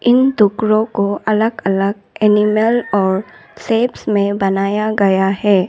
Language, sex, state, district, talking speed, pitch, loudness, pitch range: Hindi, female, Arunachal Pradesh, Lower Dibang Valley, 125 wpm, 210 Hz, -15 LUFS, 195-220 Hz